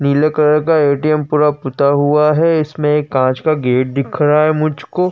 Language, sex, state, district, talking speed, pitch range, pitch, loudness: Hindi, male, Uttar Pradesh, Jyotiba Phule Nagar, 200 wpm, 140-155 Hz, 150 Hz, -14 LUFS